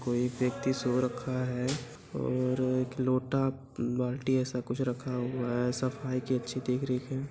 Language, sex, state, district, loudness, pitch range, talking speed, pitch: Angika, male, Bihar, Begusarai, -32 LUFS, 125-130 Hz, 180 wpm, 130 Hz